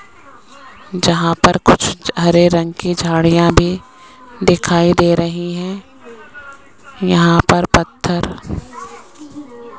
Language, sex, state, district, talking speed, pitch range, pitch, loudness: Hindi, female, Rajasthan, Jaipur, 100 wpm, 170-240 Hz, 175 Hz, -14 LUFS